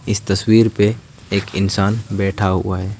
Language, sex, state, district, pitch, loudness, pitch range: Hindi, male, West Bengal, Alipurduar, 100 Hz, -17 LUFS, 95-110 Hz